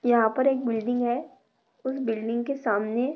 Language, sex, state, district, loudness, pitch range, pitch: Hindi, female, Maharashtra, Chandrapur, -26 LUFS, 225-260 Hz, 240 Hz